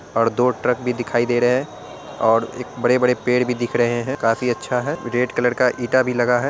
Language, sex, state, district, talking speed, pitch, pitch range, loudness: Angika, male, Bihar, Araria, 260 wpm, 125 Hz, 120-125 Hz, -20 LUFS